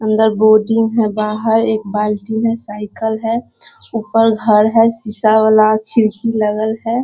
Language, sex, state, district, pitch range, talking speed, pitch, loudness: Hindi, female, Bihar, Sitamarhi, 215-225 Hz, 135 wpm, 220 Hz, -14 LUFS